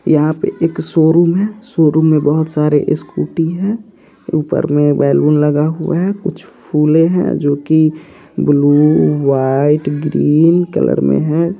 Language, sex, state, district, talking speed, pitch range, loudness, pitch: Hindi, male, Bihar, Purnia, 145 wpm, 150-170 Hz, -13 LUFS, 155 Hz